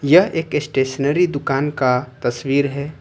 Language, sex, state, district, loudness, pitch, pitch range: Hindi, male, Jharkhand, Ranchi, -19 LUFS, 140 Hz, 135-150 Hz